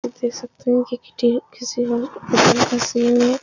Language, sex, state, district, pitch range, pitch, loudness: Hindi, female, Uttar Pradesh, Etah, 240-245 Hz, 245 Hz, -19 LUFS